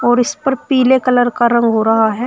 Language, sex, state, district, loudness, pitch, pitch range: Hindi, female, Uttar Pradesh, Shamli, -13 LUFS, 245 Hz, 230-260 Hz